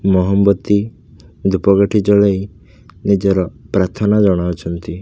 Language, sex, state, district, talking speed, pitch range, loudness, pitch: Odia, male, Odisha, Khordha, 70 wpm, 95-105 Hz, -15 LUFS, 100 Hz